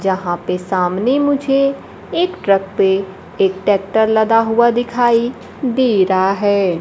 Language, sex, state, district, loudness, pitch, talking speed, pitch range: Hindi, female, Bihar, Kaimur, -16 LUFS, 205 Hz, 130 wpm, 190-240 Hz